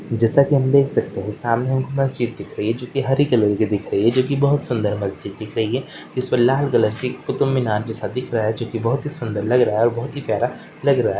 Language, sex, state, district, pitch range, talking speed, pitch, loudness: Hindi, male, West Bengal, Purulia, 110-135 Hz, 275 wpm, 120 Hz, -20 LUFS